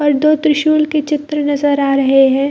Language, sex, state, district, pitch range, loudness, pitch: Hindi, female, Bihar, Gaya, 280-300 Hz, -13 LUFS, 290 Hz